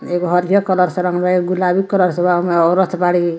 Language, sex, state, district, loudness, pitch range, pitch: Bhojpuri, female, Bihar, Muzaffarpur, -15 LUFS, 175-185 Hz, 180 Hz